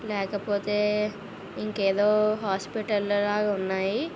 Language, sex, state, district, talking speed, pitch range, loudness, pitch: Telugu, female, Andhra Pradesh, Visakhapatnam, 70 wpm, 200-210 Hz, -26 LUFS, 205 Hz